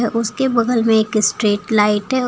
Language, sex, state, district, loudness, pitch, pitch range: Hindi, female, Uttar Pradesh, Lucknow, -16 LUFS, 225 Hz, 210-240 Hz